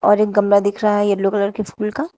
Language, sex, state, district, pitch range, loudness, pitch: Hindi, female, Uttar Pradesh, Shamli, 200-210 Hz, -17 LUFS, 205 Hz